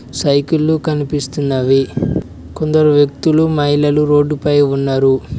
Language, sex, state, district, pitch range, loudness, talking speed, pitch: Telugu, male, Telangana, Mahabubabad, 135-150 Hz, -14 LUFS, 80 wpm, 145 Hz